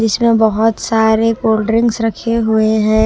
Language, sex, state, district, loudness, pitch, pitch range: Hindi, female, Himachal Pradesh, Shimla, -14 LUFS, 225 Hz, 220-230 Hz